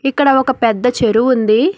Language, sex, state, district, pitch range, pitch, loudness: Telugu, female, Telangana, Hyderabad, 230-270 Hz, 250 Hz, -13 LUFS